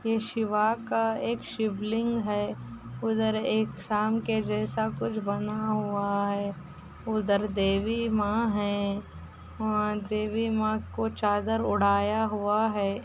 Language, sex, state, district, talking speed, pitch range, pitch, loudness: Hindi, female, Uttar Pradesh, Ghazipur, 125 wpm, 200-220 Hz, 210 Hz, -28 LUFS